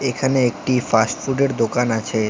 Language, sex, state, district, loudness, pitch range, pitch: Bengali, male, West Bengal, Alipurduar, -19 LUFS, 115-135 Hz, 125 Hz